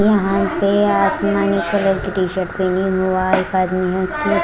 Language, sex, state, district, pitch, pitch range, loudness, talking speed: Hindi, female, Chandigarh, Chandigarh, 190 Hz, 185-200 Hz, -17 LUFS, 160 wpm